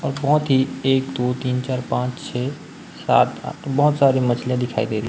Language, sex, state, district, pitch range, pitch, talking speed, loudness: Hindi, male, Chhattisgarh, Raipur, 125-140 Hz, 130 Hz, 175 wpm, -20 LUFS